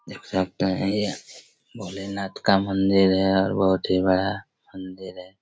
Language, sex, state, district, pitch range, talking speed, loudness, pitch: Hindi, male, Chhattisgarh, Raigarh, 95-100 Hz, 145 wpm, -23 LUFS, 95 Hz